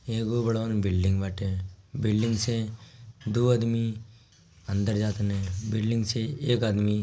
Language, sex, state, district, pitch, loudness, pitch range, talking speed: Bhojpuri, male, Bihar, Gopalganj, 110 Hz, -27 LUFS, 100-115 Hz, 120 wpm